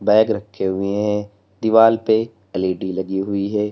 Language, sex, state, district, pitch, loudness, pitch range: Hindi, male, Uttar Pradesh, Lalitpur, 105 Hz, -19 LUFS, 95-110 Hz